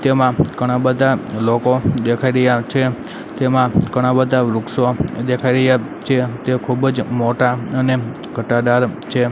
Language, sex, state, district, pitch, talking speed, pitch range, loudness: Gujarati, male, Gujarat, Gandhinagar, 125 Hz, 135 wpm, 120-130 Hz, -17 LUFS